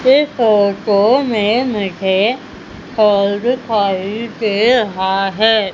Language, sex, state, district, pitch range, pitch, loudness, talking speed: Hindi, female, Madhya Pradesh, Umaria, 200-235 Hz, 215 Hz, -15 LUFS, 95 wpm